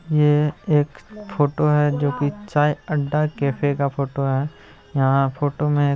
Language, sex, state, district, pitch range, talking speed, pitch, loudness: Hindi, male, Bihar, Araria, 140-150 Hz, 170 wpm, 145 Hz, -21 LUFS